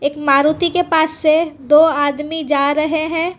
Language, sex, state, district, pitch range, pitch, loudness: Hindi, female, Gujarat, Valsad, 290-320 Hz, 310 Hz, -15 LUFS